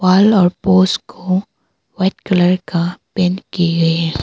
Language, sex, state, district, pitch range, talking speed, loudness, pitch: Hindi, female, Arunachal Pradesh, Papum Pare, 175-190 Hz, 115 wpm, -15 LUFS, 185 Hz